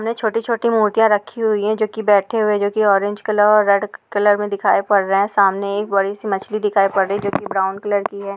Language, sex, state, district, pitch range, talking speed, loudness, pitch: Hindi, female, Uttar Pradesh, Etah, 200-215 Hz, 260 wpm, -17 LUFS, 205 Hz